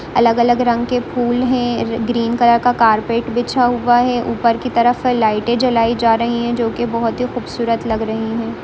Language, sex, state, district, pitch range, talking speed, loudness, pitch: Hindi, female, Bihar, Darbhanga, 230-245 Hz, 210 wpm, -16 LUFS, 235 Hz